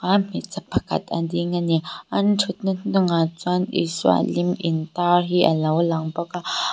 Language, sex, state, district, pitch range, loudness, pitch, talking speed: Mizo, female, Mizoram, Aizawl, 165-185 Hz, -22 LUFS, 175 Hz, 160 wpm